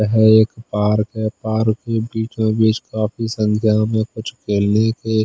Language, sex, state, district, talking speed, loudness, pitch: Hindi, male, Chandigarh, Chandigarh, 150 wpm, -18 LUFS, 110 Hz